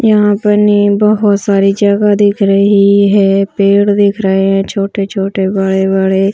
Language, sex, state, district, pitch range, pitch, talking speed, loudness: Hindi, female, Chhattisgarh, Bastar, 195-205 Hz, 200 Hz, 140 wpm, -10 LUFS